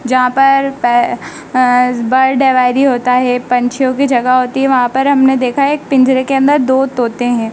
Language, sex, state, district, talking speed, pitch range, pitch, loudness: Hindi, female, Madhya Pradesh, Dhar, 200 wpm, 250-270 Hz, 260 Hz, -12 LUFS